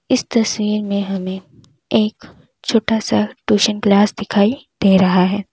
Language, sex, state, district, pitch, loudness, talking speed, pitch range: Hindi, female, Uttar Pradesh, Lalitpur, 205 Hz, -17 LUFS, 140 wpm, 190-215 Hz